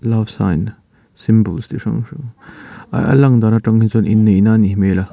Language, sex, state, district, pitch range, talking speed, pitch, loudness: Mizo, male, Mizoram, Aizawl, 100-115 Hz, 185 wpm, 110 Hz, -14 LUFS